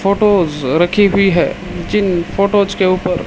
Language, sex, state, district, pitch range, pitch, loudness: Hindi, male, Rajasthan, Bikaner, 175-200 Hz, 195 Hz, -14 LUFS